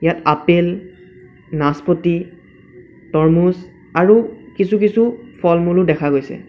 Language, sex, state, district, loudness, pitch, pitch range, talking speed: Assamese, male, Assam, Sonitpur, -16 LUFS, 175 Hz, 160-185 Hz, 90 wpm